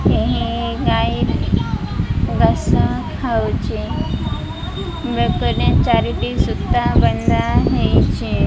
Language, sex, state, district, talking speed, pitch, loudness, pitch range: Odia, female, Odisha, Malkangiri, 65 wpm, 95 Hz, -18 LUFS, 75-100 Hz